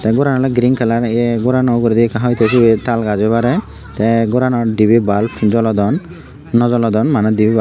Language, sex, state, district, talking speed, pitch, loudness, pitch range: Chakma, male, Tripura, Unakoti, 190 wpm, 115 Hz, -14 LUFS, 110-120 Hz